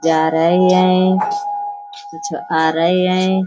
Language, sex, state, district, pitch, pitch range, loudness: Hindi, female, Uttar Pradesh, Budaun, 185 Hz, 165-205 Hz, -15 LUFS